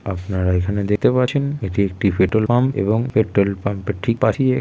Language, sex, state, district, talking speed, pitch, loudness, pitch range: Bengali, male, West Bengal, Kolkata, 180 wpm, 105 Hz, -19 LUFS, 100-125 Hz